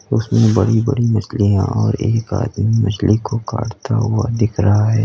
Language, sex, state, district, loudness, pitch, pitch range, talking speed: Hindi, male, Uttar Pradesh, Lalitpur, -16 LUFS, 110 Hz, 105-115 Hz, 165 wpm